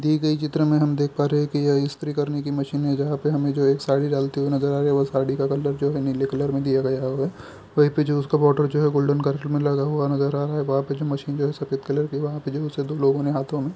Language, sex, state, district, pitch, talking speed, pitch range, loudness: Hindi, male, Chhattisgarh, Bilaspur, 145 Hz, 320 wpm, 140-145 Hz, -23 LUFS